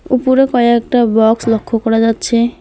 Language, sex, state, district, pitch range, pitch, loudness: Bengali, female, West Bengal, Alipurduar, 225-250 Hz, 235 Hz, -13 LUFS